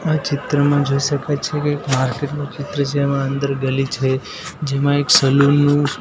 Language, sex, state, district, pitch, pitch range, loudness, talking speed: Gujarati, male, Gujarat, Gandhinagar, 145 Hz, 140-145 Hz, -18 LUFS, 180 wpm